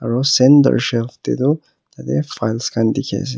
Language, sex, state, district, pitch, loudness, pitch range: Nagamese, male, Nagaland, Kohima, 120 Hz, -16 LUFS, 115-135 Hz